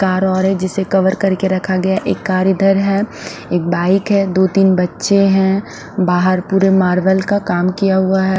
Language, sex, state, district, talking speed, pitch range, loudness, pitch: Hindi, male, Punjab, Fazilka, 200 wpm, 185-195 Hz, -15 LUFS, 190 Hz